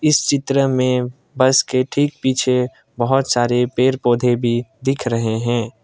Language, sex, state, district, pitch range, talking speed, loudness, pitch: Hindi, male, Assam, Kamrup Metropolitan, 120-135 Hz, 155 wpm, -18 LUFS, 130 Hz